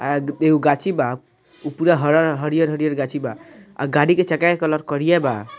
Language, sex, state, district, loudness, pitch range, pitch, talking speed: Bhojpuri, male, Bihar, Muzaffarpur, -19 LUFS, 145-160 Hz, 150 Hz, 225 wpm